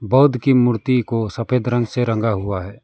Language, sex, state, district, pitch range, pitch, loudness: Hindi, male, West Bengal, Alipurduar, 110-125 Hz, 120 Hz, -18 LUFS